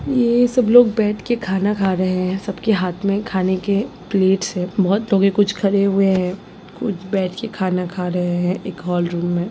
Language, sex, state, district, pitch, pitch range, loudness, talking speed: Hindi, female, Bihar, Jamui, 195 Hz, 185-205 Hz, -19 LUFS, 215 wpm